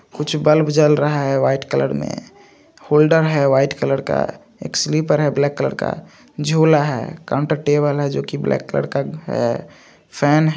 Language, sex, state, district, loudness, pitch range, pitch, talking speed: Hindi, male, Andhra Pradesh, Visakhapatnam, -18 LUFS, 135-150 Hz, 145 Hz, 180 wpm